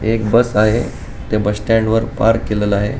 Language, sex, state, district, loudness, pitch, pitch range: Marathi, male, Goa, North and South Goa, -16 LUFS, 110 Hz, 105-115 Hz